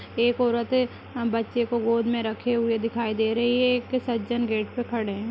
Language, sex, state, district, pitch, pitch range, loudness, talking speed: Kumaoni, female, Uttarakhand, Uttarkashi, 235 Hz, 230-240 Hz, -25 LUFS, 215 wpm